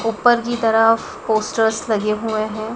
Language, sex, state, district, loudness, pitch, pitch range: Hindi, female, Madhya Pradesh, Dhar, -18 LUFS, 225 Hz, 215-225 Hz